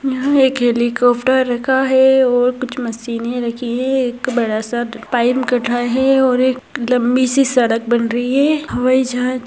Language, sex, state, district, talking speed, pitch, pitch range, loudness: Hindi, female, Maharashtra, Aurangabad, 150 wpm, 250 Hz, 240-260 Hz, -16 LUFS